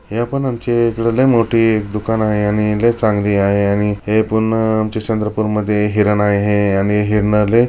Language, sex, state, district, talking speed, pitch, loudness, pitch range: Marathi, male, Maharashtra, Chandrapur, 170 wpm, 105 Hz, -15 LUFS, 105-115 Hz